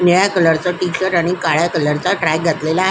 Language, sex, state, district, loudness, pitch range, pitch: Marathi, female, Maharashtra, Solapur, -16 LUFS, 160-180 Hz, 170 Hz